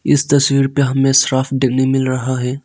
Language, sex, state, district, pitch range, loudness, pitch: Hindi, male, Arunachal Pradesh, Longding, 130-135 Hz, -15 LUFS, 135 Hz